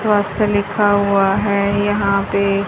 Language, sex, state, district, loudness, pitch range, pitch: Hindi, female, Haryana, Charkhi Dadri, -16 LUFS, 200-205 Hz, 200 Hz